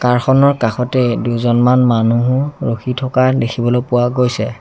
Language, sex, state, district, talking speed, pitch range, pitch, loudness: Assamese, male, Assam, Sonitpur, 130 wpm, 120-130 Hz, 125 Hz, -14 LUFS